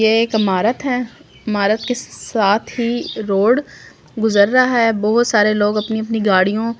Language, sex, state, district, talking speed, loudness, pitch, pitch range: Hindi, female, Delhi, New Delhi, 150 wpm, -16 LUFS, 220 Hz, 210-235 Hz